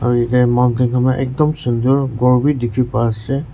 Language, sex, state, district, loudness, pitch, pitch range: Nagamese, male, Nagaland, Kohima, -16 LUFS, 125 Hz, 120-135 Hz